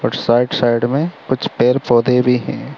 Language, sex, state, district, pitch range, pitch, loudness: Hindi, male, Arunachal Pradesh, Lower Dibang Valley, 120-130 Hz, 125 Hz, -16 LUFS